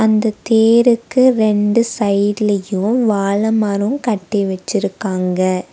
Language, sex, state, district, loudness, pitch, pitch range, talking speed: Tamil, female, Tamil Nadu, Nilgiris, -15 LUFS, 210 Hz, 200-225 Hz, 85 wpm